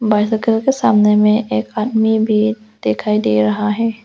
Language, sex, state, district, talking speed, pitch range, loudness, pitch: Hindi, female, Arunachal Pradesh, Lower Dibang Valley, 165 wpm, 210-220 Hz, -15 LUFS, 215 Hz